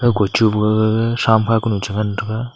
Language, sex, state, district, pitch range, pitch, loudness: Wancho, male, Arunachal Pradesh, Longding, 105-115 Hz, 110 Hz, -17 LUFS